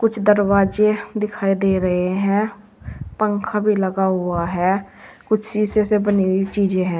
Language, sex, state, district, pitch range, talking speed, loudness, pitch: Hindi, female, Uttar Pradesh, Saharanpur, 190-210 Hz, 145 wpm, -19 LUFS, 200 Hz